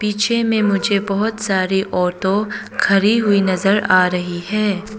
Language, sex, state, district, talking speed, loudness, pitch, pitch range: Hindi, female, Arunachal Pradesh, Papum Pare, 145 wpm, -17 LUFS, 200 Hz, 190-210 Hz